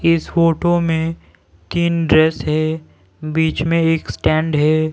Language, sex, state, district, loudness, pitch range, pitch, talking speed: Hindi, male, Punjab, Pathankot, -17 LUFS, 155-165 Hz, 160 Hz, 135 wpm